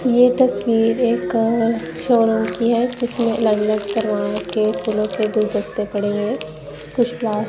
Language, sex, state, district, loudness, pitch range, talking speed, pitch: Hindi, female, Punjab, Kapurthala, -19 LUFS, 210-235 Hz, 135 wpm, 225 Hz